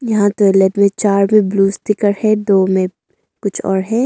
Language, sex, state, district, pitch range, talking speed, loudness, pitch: Hindi, female, Arunachal Pradesh, Longding, 195-210 Hz, 175 wpm, -14 LUFS, 200 Hz